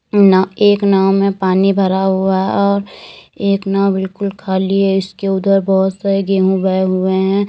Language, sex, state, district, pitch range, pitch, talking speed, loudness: Hindi, female, Uttar Pradesh, Lalitpur, 190-195 Hz, 195 Hz, 170 wpm, -14 LUFS